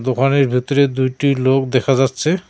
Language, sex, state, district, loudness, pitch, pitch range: Bengali, male, West Bengal, Cooch Behar, -16 LUFS, 135 Hz, 130-140 Hz